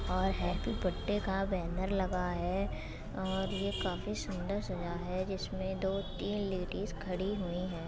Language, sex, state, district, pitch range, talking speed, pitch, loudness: Hindi, female, Uttar Pradesh, Etah, 180-195 Hz, 150 wpm, 190 Hz, -36 LUFS